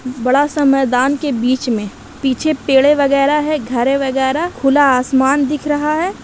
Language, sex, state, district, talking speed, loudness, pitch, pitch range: Hindi, female, Bihar, Gaya, 165 wpm, -15 LUFS, 275 Hz, 260-295 Hz